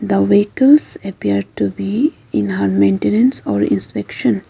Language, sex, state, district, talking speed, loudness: English, female, Arunachal Pradesh, Lower Dibang Valley, 135 wpm, -16 LUFS